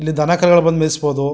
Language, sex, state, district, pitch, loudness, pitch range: Kannada, male, Karnataka, Mysore, 155 Hz, -15 LUFS, 150-170 Hz